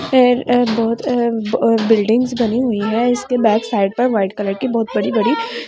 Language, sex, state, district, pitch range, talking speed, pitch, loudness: Hindi, female, Delhi, New Delhi, 220-245 Hz, 190 wpm, 230 Hz, -16 LUFS